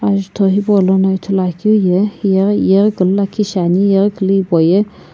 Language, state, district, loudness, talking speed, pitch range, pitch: Sumi, Nagaland, Kohima, -13 LUFS, 130 wpm, 185-200 Hz, 195 Hz